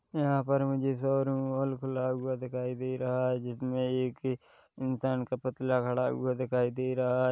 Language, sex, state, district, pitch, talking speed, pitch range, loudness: Hindi, male, Chhattisgarh, Rajnandgaon, 130 Hz, 170 wpm, 125-130 Hz, -31 LUFS